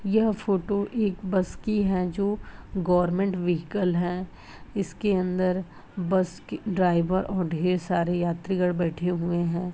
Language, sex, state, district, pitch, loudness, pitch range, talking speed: Hindi, female, Uttar Pradesh, Jyotiba Phule Nagar, 185 Hz, -26 LUFS, 175-195 Hz, 130 wpm